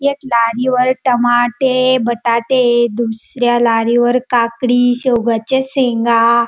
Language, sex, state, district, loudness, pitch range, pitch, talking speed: Marathi, female, Maharashtra, Dhule, -14 LUFS, 235-255 Hz, 240 Hz, 90 wpm